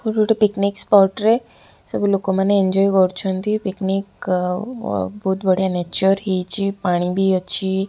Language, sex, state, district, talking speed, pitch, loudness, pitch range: Odia, female, Odisha, Khordha, 135 wpm, 195 Hz, -19 LUFS, 185-200 Hz